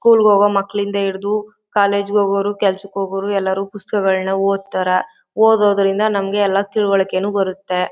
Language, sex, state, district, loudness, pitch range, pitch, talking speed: Kannada, female, Karnataka, Chamarajanagar, -17 LUFS, 195-205 Hz, 200 Hz, 135 wpm